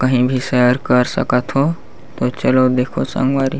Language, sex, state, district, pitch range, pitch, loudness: Chhattisgarhi, male, Chhattisgarh, Bastar, 125-135 Hz, 130 Hz, -16 LUFS